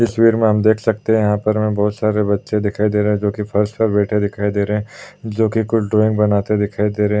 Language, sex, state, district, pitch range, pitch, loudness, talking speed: Hindi, male, Uttar Pradesh, Jalaun, 105-110 Hz, 105 Hz, -17 LUFS, 250 wpm